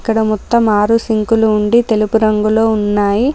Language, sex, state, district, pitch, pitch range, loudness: Telugu, female, Telangana, Komaram Bheem, 220 Hz, 210-225 Hz, -13 LUFS